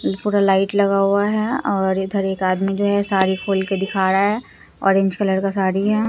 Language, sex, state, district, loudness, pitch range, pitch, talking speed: Hindi, female, Bihar, Katihar, -19 LUFS, 190-200 Hz, 195 Hz, 215 wpm